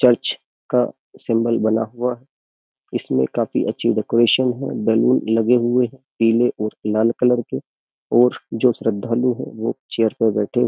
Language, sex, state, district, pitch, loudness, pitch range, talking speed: Hindi, male, Uttar Pradesh, Jyotiba Phule Nagar, 115 Hz, -19 LUFS, 110-125 Hz, 165 wpm